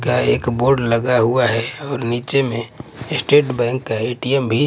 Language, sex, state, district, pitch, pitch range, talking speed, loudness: Hindi, male, Punjab, Pathankot, 125 Hz, 115-140 Hz, 180 wpm, -18 LUFS